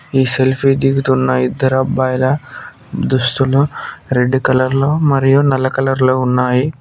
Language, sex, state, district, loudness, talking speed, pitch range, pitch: Telugu, male, Telangana, Mahabubabad, -14 LUFS, 115 wpm, 130-135 Hz, 130 Hz